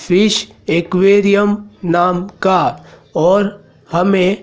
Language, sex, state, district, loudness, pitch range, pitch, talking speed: Hindi, male, Madhya Pradesh, Dhar, -14 LUFS, 180-205 Hz, 190 Hz, 80 wpm